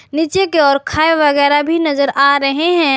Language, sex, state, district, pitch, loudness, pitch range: Hindi, female, Jharkhand, Garhwa, 295 Hz, -13 LUFS, 280-325 Hz